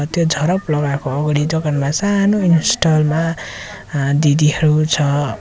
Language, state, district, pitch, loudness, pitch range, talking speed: Nepali, West Bengal, Darjeeling, 150 Hz, -16 LUFS, 145-165 Hz, 110 wpm